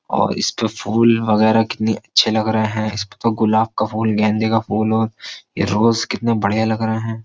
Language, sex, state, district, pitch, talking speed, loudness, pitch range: Hindi, male, Uttar Pradesh, Jyotiba Phule Nagar, 110 Hz, 205 wpm, -18 LUFS, 110-115 Hz